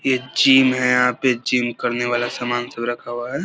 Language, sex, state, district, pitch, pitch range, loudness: Hindi, male, Bihar, Vaishali, 120 Hz, 120-130 Hz, -19 LUFS